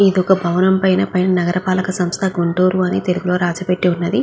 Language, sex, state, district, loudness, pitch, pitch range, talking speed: Telugu, female, Andhra Pradesh, Guntur, -16 LUFS, 185 Hz, 180-190 Hz, 185 wpm